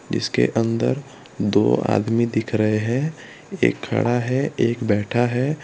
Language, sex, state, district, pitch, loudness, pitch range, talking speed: Hindi, male, Gujarat, Valsad, 120 Hz, -21 LUFS, 110-125 Hz, 125 wpm